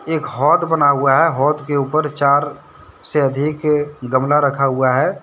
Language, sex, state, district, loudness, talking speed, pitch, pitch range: Hindi, male, Jharkhand, Deoghar, -16 LUFS, 170 wpm, 145 Hz, 140-155 Hz